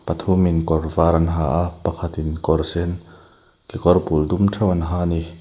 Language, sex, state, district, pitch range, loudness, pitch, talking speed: Mizo, male, Mizoram, Aizawl, 80-90 Hz, -20 LUFS, 85 Hz, 175 wpm